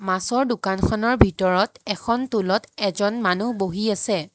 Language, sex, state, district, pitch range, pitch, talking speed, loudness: Assamese, female, Assam, Hailakandi, 190-230 Hz, 205 Hz, 125 wpm, -22 LUFS